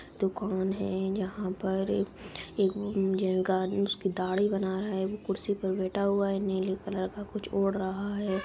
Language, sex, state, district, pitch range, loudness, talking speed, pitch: Hindi, female, Bihar, Supaul, 190-200 Hz, -31 LUFS, 170 wpm, 195 Hz